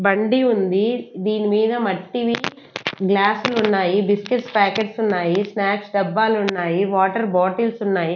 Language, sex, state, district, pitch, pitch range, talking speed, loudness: Telugu, female, Andhra Pradesh, Annamaya, 205 Hz, 195-220 Hz, 105 wpm, -20 LUFS